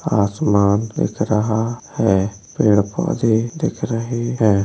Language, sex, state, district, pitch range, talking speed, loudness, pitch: Hindi, male, Uttar Pradesh, Hamirpur, 100-120 Hz, 115 wpm, -19 LUFS, 110 Hz